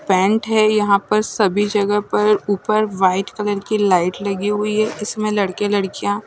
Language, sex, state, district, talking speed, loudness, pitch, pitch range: Hindi, female, Chandigarh, Chandigarh, 145 wpm, -18 LUFS, 205 Hz, 200-215 Hz